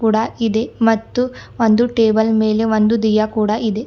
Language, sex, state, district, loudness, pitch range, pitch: Kannada, female, Karnataka, Bidar, -16 LUFS, 220-225 Hz, 220 Hz